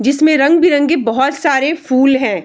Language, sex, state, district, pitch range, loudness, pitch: Hindi, female, Bihar, Darbhanga, 265-310 Hz, -12 LUFS, 280 Hz